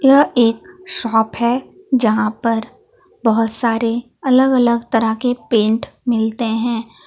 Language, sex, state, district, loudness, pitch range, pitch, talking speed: Hindi, female, Jharkhand, Palamu, -17 LUFS, 225-260 Hz, 235 Hz, 125 wpm